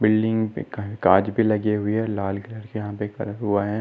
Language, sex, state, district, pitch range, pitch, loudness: Hindi, male, Maharashtra, Nagpur, 100-110 Hz, 105 Hz, -23 LUFS